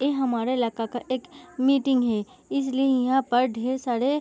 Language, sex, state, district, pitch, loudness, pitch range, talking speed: Hindi, female, Bihar, Gopalganj, 255 Hz, -25 LUFS, 240-270 Hz, 185 wpm